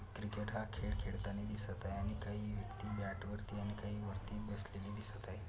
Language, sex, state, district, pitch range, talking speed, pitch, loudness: Marathi, male, Maharashtra, Pune, 100-105 Hz, 185 wpm, 105 Hz, -44 LUFS